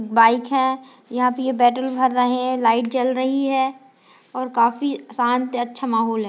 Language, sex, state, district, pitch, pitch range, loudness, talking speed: Hindi, female, Chhattisgarh, Raigarh, 255 Hz, 240-265 Hz, -20 LUFS, 180 wpm